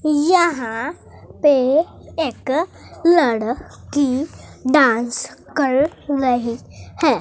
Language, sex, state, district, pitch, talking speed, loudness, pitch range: Hindi, male, Bihar, Katihar, 280 Hz, 65 wpm, -19 LUFS, 240-310 Hz